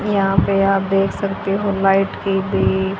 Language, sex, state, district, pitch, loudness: Hindi, female, Haryana, Rohtak, 195 Hz, -18 LUFS